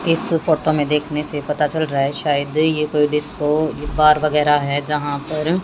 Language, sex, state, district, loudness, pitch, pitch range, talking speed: Hindi, female, Haryana, Jhajjar, -18 LUFS, 150 Hz, 145-155 Hz, 190 wpm